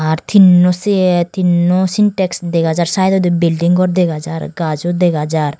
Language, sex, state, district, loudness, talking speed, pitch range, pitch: Chakma, female, Tripura, Dhalai, -13 LUFS, 150 wpm, 165-185 Hz, 175 Hz